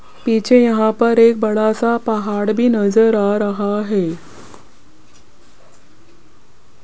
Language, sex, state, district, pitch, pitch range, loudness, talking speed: Hindi, female, Rajasthan, Jaipur, 220 Hz, 205-230 Hz, -15 LUFS, 105 wpm